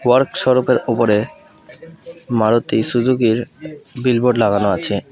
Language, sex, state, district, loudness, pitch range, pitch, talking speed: Bengali, male, West Bengal, Alipurduar, -16 LUFS, 115-135 Hz, 125 Hz, 130 wpm